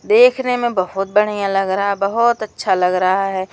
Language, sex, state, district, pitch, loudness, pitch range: Hindi, female, Madhya Pradesh, Umaria, 195 Hz, -17 LUFS, 190-230 Hz